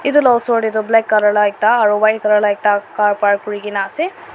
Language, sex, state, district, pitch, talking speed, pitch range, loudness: Nagamese, female, Nagaland, Dimapur, 210 Hz, 250 wpm, 205-225 Hz, -15 LUFS